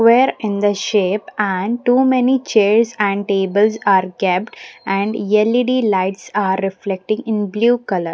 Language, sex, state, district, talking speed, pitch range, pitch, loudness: English, female, Punjab, Pathankot, 145 wpm, 195-230 Hz, 210 Hz, -17 LUFS